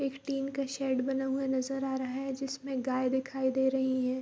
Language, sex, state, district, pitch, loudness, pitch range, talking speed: Hindi, female, Bihar, Vaishali, 265 Hz, -32 LUFS, 260-270 Hz, 240 wpm